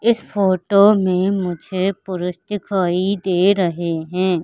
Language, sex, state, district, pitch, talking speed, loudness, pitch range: Hindi, female, Madhya Pradesh, Katni, 185 Hz, 120 wpm, -18 LUFS, 180-200 Hz